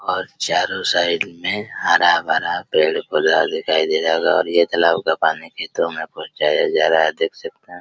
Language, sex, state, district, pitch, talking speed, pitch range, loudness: Hindi, male, Bihar, Araria, 80 Hz, 185 wpm, 80-85 Hz, -18 LUFS